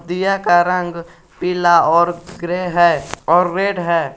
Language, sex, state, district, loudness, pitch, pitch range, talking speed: Hindi, male, Jharkhand, Garhwa, -16 LUFS, 175 Hz, 170-180 Hz, 145 wpm